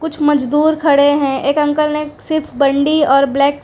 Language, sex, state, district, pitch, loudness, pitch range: Hindi, female, Gujarat, Valsad, 295 Hz, -14 LUFS, 280-300 Hz